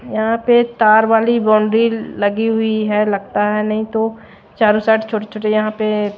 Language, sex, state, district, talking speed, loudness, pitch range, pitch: Hindi, female, Odisha, Malkangiri, 175 wpm, -15 LUFS, 215-225 Hz, 215 Hz